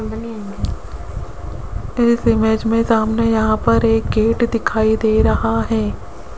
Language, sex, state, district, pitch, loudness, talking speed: Hindi, female, Rajasthan, Jaipur, 205 Hz, -17 LUFS, 115 wpm